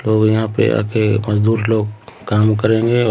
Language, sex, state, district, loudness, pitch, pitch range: Hindi, male, Bihar, Samastipur, -16 LUFS, 110 Hz, 105-110 Hz